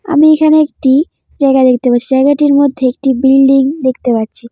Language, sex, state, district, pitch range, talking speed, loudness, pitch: Bengali, female, West Bengal, Cooch Behar, 255-290 Hz, 160 wpm, -10 LUFS, 270 Hz